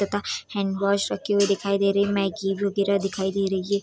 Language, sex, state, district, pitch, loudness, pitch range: Hindi, female, Bihar, Sitamarhi, 200 Hz, -24 LUFS, 195-200 Hz